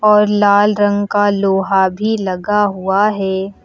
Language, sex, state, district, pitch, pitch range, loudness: Hindi, female, Uttar Pradesh, Lucknow, 205 Hz, 195-210 Hz, -14 LUFS